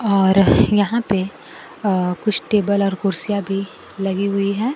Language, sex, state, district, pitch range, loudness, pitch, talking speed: Hindi, female, Bihar, Kaimur, 195-210 Hz, -18 LUFS, 200 Hz, 140 wpm